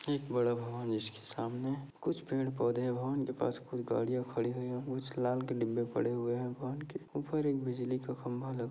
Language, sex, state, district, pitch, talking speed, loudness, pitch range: Hindi, male, Chhattisgarh, Bastar, 125 Hz, 225 wpm, -36 LUFS, 120-135 Hz